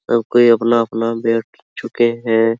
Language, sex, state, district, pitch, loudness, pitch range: Hindi, male, Bihar, Araria, 115 Hz, -16 LUFS, 115-120 Hz